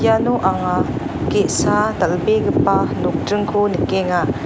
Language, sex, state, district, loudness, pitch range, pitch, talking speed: Garo, female, Meghalaya, North Garo Hills, -18 LUFS, 180-225 Hz, 205 Hz, 80 wpm